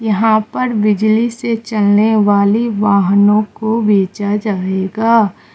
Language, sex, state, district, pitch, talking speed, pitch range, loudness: Hindi, female, Mizoram, Aizawl, 210 Hz, 110 wpm, 205-225 Hz, -14 LUFS